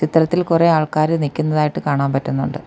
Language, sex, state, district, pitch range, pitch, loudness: Malayalam, female, Kerala, Kollam, 145-165 Hz, 155 Hz, -17 LUFS